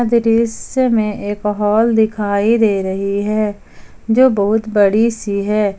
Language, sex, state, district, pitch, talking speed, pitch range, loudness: Hindi, female, Jharkhand, Ranchi, 215 Hz, 135 wpm, 205-225 Hz, -15 LUFS